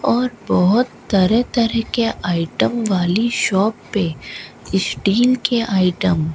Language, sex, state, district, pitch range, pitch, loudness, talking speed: Hindi, female, Rajasthan, Bikaner, 185-235 Hz, 205 Hz, -18 LUFS, 125 wpm